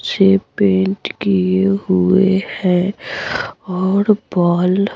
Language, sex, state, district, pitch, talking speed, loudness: Hindi, female, Bihar, Patna, 180 Hz, 85 wpm, -16 LUFS